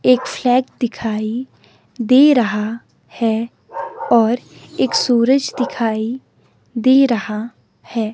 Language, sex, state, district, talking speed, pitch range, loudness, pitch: Hindi, female, Himachal Pradesh, Shimla, 95 wpm, 225-255 Hz, -17 LUFS, 235 Hz